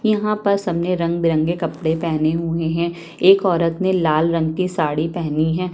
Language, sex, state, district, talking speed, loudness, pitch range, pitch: Hindi, female, Chhattisgarh, Kabirdham, 180 wpm, -19 LUFS, 160-180 Hz, 170 Hz